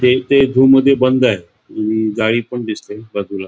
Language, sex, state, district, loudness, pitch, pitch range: Marathi, male, Goa, North and South Goa, -15 LUFS, 110 Hz, 105-130 Hz